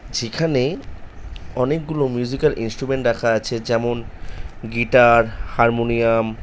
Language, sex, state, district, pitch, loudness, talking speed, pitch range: Bengali, male, West Bengal, North 24 Parganas, 115 Hz, -19 LUFS, 95 wpm, 110-125 Hz